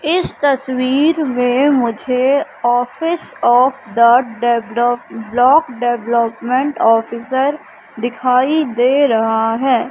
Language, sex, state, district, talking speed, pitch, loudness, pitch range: Hindi, female, Madhya Pradesh, Katni, 90 wpm, 250 Hz, -15 LUFS, 235-275 Hz